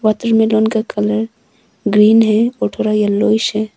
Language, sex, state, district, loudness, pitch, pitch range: Hindi, female, Arunachal Pradesh, Longding, -14 LUFS, 215 Hz, 210-225 Hz